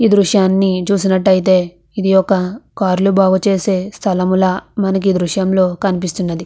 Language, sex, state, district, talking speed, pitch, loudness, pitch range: Telugu, female, Andhra Pradesh, Visakhapatnam, 120 wpm, 190 Hz, -14 LUFS, 185-195 Hz